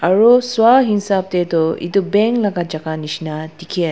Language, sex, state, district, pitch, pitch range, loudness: Nagamese, female, Nagaland, Dimapur, 180 Hz, 160-210 Hz, -16 LUFS